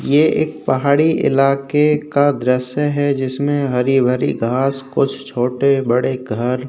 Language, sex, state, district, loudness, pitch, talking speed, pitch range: Hindi, male, Uttar Pradesh, Hamirpur, -17 LUFS, 135 Hz, 135 wpm, 125-145 Hz